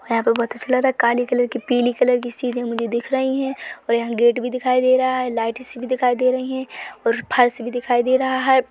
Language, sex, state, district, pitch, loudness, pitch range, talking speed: Hindi, female, Chhattisgarh, Bilaspur, 245 Hz, -20 LUFS, 240-255 Hz, 275 wpm